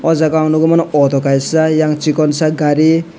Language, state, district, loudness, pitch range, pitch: Kokborok, Tripura, West Tripura, -13 LUFS, 150-160 Hz, 155 Hz